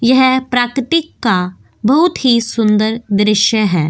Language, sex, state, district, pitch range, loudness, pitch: Hindi, female, Goa, North and South Goa, 210-260 Hz, -13 LUFS, 230 Hz